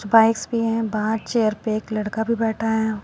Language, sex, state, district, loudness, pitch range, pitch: Hindi, female, Uttar Pradesh, Shamli, -22 LUFS, 215-225 Hz, 220 Hz